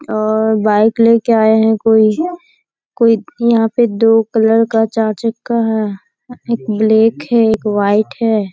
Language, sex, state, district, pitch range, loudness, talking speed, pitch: Hindi, female, Bihar, Kishanganj, 220-230 Hz, -13 LUFS, 145 wpm, 225 Hz